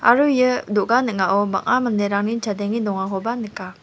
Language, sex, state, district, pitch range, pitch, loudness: Garo, female, Meghalaya, West Garo Hills, 200-240 Hz, 210 Hz, -20 LUFS